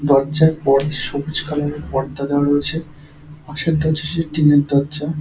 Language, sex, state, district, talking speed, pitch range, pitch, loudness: Bengali, male, West Bengal, Dakshin Dinajpur, 150 wpm, 145-155 Hz, 150 Hz, -18 LUFS